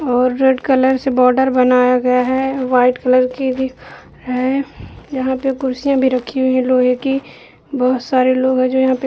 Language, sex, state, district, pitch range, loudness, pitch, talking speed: Hindi, female, Uttar Pradesh, Budaun, 255-265 Hz, -15 LUFS, 260 Hz, 200 wpm